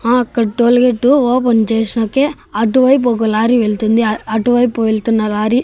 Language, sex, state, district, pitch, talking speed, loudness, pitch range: Telugu, male, Andhra Pradesh, Annamaya, 230 Hz, 140 wpm, -13 LUFS, 220-245 Hz